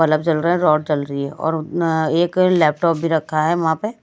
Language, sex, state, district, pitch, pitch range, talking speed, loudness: Hindi, female, Haryana, Jhajjar, 160 Hz, 155-170 Hz, 255 wpm, -18 LUFS